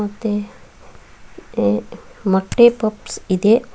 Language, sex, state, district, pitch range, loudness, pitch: Kannada, female, Karnataka, Bangalore, 190-225 Hz, -18 LUFS, 210 Hz